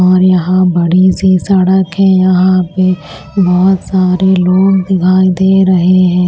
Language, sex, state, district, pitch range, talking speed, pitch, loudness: Hindi, female, Maharashtra, Washim, 180-190 Hz, 145 wpm, 185 Hz, -10 LUFS